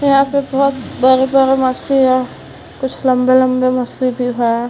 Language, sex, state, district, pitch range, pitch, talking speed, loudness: Hindi, female, Bihar, Vaishali, 255-270 Hz, 260 Hz, 140 wpm, -14 LUFS